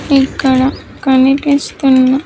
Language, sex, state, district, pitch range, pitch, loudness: Telugu, female, Andhra Pradesh, Sri Satya Sai, 265-280 Hz, 270 Hz, -12 LUFS